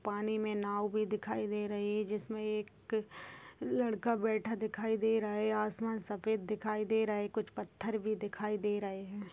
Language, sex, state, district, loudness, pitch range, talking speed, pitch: Hindi, female, Bihar, Bhagalpur, -36 LUFS, 210-220 Hz, 185 wpm, 215 Hz